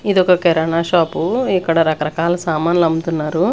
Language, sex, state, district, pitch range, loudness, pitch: Telugu, female, Andhra Pradesh, Sri Satya Sai, 160-175 Hz, -16 LUFS, 165 Hz